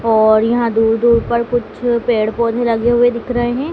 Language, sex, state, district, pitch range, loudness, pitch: Hindi, female, Madhya Pradesh, Dhar, 225-240 Hz, -15 LUFS, 235 Hz